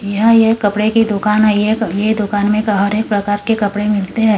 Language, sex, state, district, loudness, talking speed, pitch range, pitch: Hindi, female, Maharashtra, Gondia, -14 LUFS, 230 wpm, 205-220 Hz, 210 Hz